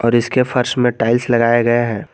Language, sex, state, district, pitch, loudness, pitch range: Hindi, male, Jharkhand, Garhwa, 120 Hz, -15 LUFS, 115-125 Hz